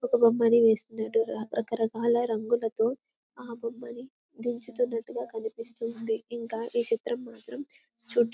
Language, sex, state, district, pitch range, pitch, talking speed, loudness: Telugu, female, Telangana, Karimnagar, 225-240 Hz, 235 Hz, 115 wpm, -29 LUFS